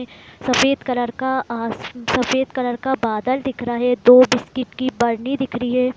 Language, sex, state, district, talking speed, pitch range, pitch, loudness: Hindi, female, Bihar, Muzaffarpur, 180 wpm, 240-260 Hz, 250 Hz, -19 LUFS